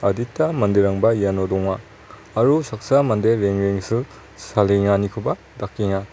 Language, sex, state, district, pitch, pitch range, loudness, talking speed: Garo, male, Meghalaya, West Garo Hills, 105 Hz, 100-115 Hz, -20 LUFS, 100 wpm